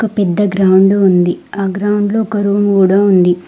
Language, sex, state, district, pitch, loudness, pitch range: Telugu, female, Telangana, Mahabubabad, 195 Hz, -12 LUFS, 190-205 Hz